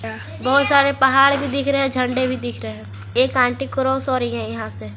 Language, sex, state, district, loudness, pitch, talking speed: Hindi, female, Jharkhand, Garhwa, -18 LUFS, 255 Hz, 240 wpm